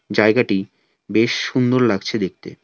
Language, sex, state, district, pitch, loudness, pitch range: Bengali, male, West Bengal, Alipurduar, 110 Hz, -19 LUFS, 105-125 Hz